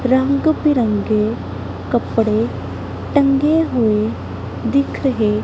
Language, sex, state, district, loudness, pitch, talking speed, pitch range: Punjabi, female, Punjab, Kapurthala, -18 LUFS, 255 Hz, 75 wpm, 215-280 Hz